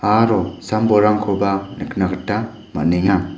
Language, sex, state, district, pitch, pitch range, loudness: Garo, male, Meghalaya, West Garo Hills, 100 Hz, 95-110 Hz, -18 LUFS